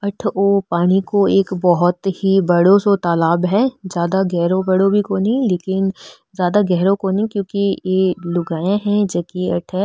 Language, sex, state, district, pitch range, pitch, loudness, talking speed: Marwari, female, Rajasthan, Nagaur, 180-200 Hz, 190 Hz, -17 LUFS, 170 wpm